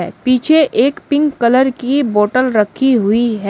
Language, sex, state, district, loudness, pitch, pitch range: Hindi, female, Uttar Pradesh, Shamli, -13 LUFS, 255 Hz, 230-275 Hz